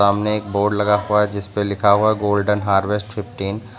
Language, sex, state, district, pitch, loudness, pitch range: Hindi, male, Uttar Pradesh, Lucknow, 105 Hz, -19 LUFS, 100-105 Hz